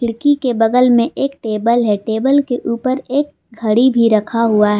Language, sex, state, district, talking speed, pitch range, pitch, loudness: Hindi, female, Jharkhand, Palamu, 200 wpm, 225-260 Hz, 235 Hz, -15 LUFS